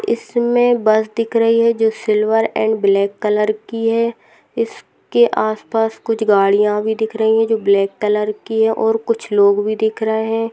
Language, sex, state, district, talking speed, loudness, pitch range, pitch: Hindi, female, Bihar, Saran, 190 wpm, -16 LUFS, 210-225 Hz, 220 Hz